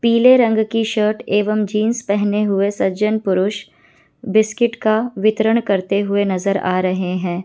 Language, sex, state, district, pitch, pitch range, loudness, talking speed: Hindi, female, Bihar, Kishanganj, 210 Hz, 195-220 Hz, -17 LUFS, 155 wpm